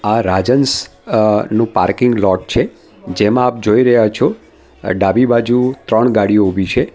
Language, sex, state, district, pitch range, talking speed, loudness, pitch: Gujarati, male, Gujarat, Valsad, 95-125 Hz, 165 wpm, -14 LUFS, 110 Hz